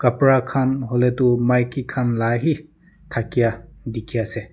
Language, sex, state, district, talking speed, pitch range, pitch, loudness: Nagamese, male, Nagaland, Dimapur, 130 wpm, 115-135 Hz, 125 Hz, -20 LUFS